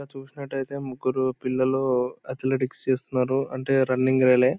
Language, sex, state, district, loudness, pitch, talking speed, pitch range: Telugu, male, Andhra Pradesh, Anantapur, -25 LUFS, 130 Hz, 130 wpm, 130-135 Hz